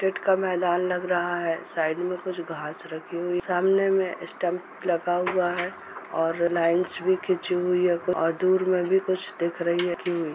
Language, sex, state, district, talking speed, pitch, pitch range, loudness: Hindi, female, Uttar Pradesh, Etah, 195 wpm, 180 Hz, 170-185 Hz, -25 LUFS